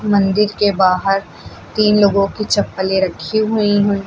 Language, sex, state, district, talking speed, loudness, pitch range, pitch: Hindi, female, Uttar Pradesh, Lucknow, 145 wpm, -15 LUFS, 195-210 Hz, 200 Hz